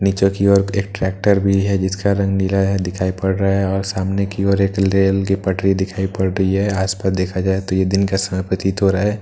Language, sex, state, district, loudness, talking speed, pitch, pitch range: Hindi, male, Bihar, Katihar, -18 LUFS, 275 wpm, 95 Hz, 95-100 Hz